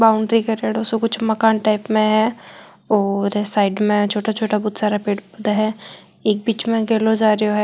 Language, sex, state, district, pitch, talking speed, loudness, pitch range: Marwari, female, Rajasthan, Nagaur, 215 Hz, 180 wpm, -19 LUFS, 210-225 Hz